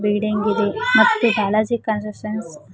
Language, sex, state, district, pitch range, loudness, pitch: Kannada, female, Karnataka, Koppal, 210-220 Hz, -19 LUFS, 215 Hz